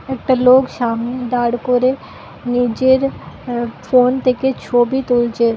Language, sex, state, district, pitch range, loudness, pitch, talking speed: Bengali, female, West Bengal, Malda, 240-260 Hz, -16 LUFS, 250 Hz, 120 wpm